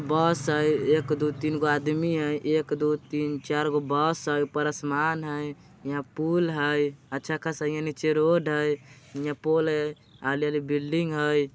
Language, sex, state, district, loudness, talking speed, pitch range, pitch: Bajjika, male, Bihar, Vaishali, -27 LUFS, 170 wpm, 145-155 Hz, 150 Hz